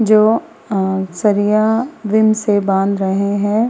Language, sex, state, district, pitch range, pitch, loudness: Hindi, female, Uttar Pradesh, Muzaffarnagar, 195-220 Hz, 210 Hz, -15 LUFS